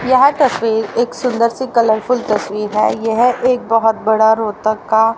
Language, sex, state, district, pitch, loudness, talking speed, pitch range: Hindi, female, Haryana, Rohtak, 225 Hz, -15 LUFS, 175 wpm, 220-245 Hz